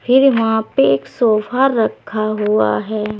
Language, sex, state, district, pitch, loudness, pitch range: Hindi, female, Uttar Pradesh, Saharanpur, 215 Hz, -16 LUFS, 205-230 Hz